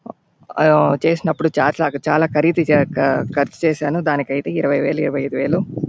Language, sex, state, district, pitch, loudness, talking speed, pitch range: Telugu, male, Andhra Pradesh, Anantapur, 155 Hz, -18 LUFS, 145 wpm, 140-160 Hz